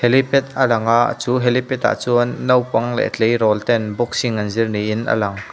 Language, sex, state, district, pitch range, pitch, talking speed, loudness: Mizo, male, Mizoram, Aizawl, 110-125 Hz, 120 Hz, 185 wpm, -18 LUFS